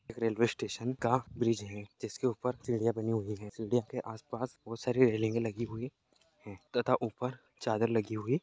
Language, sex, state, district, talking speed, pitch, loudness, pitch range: Hindi, male, Uttar Pradesh, Etah, 185 wpm, 115 Hz, -34 LUFS, 110-125 Hz